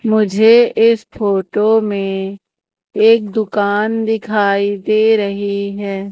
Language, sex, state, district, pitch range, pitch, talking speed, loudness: Hindi, female, Madhya Pradesh, Umaria, 200-220 Hz, 210 Hz, 100 wpm, -14 LUFS